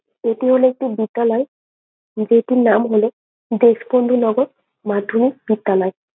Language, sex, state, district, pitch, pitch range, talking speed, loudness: Bengali, female, West Bengal, Jalpaiguri, 235 Hz, 220-255 Hz, 105 wpm, -17 LUFS